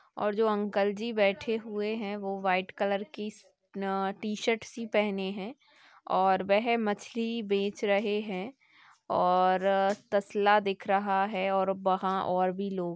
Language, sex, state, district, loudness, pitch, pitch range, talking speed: Hindi, female, Chhattisgarh, Sukma, -29 LUFS, 200 Hz, 195-210 Hz, 150 wpm